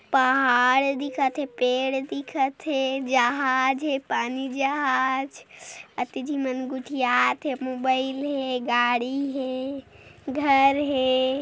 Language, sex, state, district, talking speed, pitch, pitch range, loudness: Hindi, female, Chhattisgarh, Korba, 105 wpm, 265 Hz, 260-275 Hz, -24 LUFS